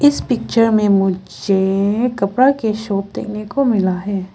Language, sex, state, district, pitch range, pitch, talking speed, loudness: Hindi, female, Arunachal Pradesh, Lower Dibang Valley, 195-235 Hz, 205 Hz, 150 wpm, -17 LUFS